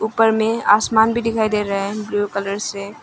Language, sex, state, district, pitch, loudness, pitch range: Hindi, female, Arunachal Pradesh, Longding, 215 Hz, -18 LUFS, 205-220 Hz